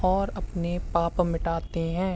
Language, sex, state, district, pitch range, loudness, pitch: Hindi, male, Uttar Pradesh, Hamirpur, 165-185 Hz, -28 LUFS, 170 Hz